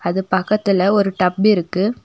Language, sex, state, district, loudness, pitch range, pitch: Tamil, female, Tamil Nadu, Nilgiris, -17 LUFS, 185-205 Hz, 195 Hz